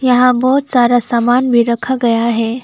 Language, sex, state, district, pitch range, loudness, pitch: Hindi, female, West Bengal, Alipurduar, 235-255 Hz, -13 LUFS, 245 Hz